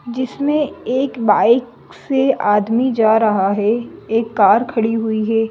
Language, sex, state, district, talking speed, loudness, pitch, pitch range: Hindi, female, Madhya Pradesh, Bhopal, 140 wpm, -16 LUFS, 225 Hz, 220-255 Hz